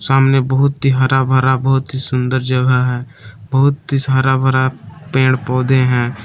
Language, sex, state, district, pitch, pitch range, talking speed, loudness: Hindi, male, Jharkhand, Palamu, 130 Hz, 125-135 Hz, 165 wpm, -14 LUFS